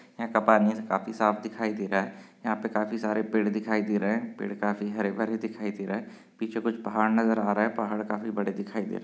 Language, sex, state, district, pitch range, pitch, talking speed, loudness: Hindi, male, Maharashtra, Chandrapur, 105-110 Hz, 110 Hz, 230 wpm, -28 LUFS